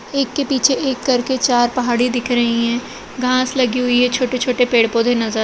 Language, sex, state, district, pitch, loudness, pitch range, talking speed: Kumaoni, female, Uttarakhand, Uttarkashi, 250 Hz, -17 LUFS, 240-255 Hz, 210 wpm